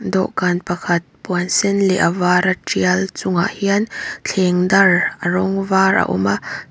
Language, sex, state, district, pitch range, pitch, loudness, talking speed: Mizo, female, Mizoram, Aizawl, 175-195 Hz, 185 Hz, -17 LUFS, 160 wpm